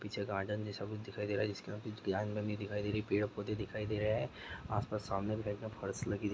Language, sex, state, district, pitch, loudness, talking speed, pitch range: Hindi, male, Jharkhand, Jamtara, 105 Hz, -39 LUFS, 225 wpm, 100-105 Hz